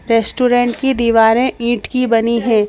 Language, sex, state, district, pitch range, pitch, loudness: Hindi, female, Madhya Pradesh, Bhopal, 230-250 Hz, 235 Hz, -14 LUFS